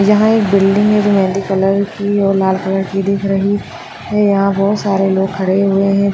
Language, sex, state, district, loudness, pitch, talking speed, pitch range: Hindi, female, Maharashtra, Chandrapur, -14 LUFS, 195 Hz, 215 wpm, 195-200 Hz